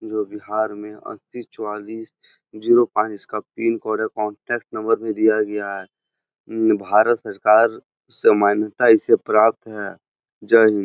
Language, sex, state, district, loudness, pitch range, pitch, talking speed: Hindi, male, Bihar, Jahanabad, -19 LUFS, 105-115 Hz, 110 Hz, 150 wpm